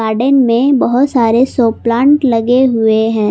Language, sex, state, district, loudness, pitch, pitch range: Hindi, female, Jharkhand, Palamu, -11 LUFS, 240 Hz, 225-265 Hz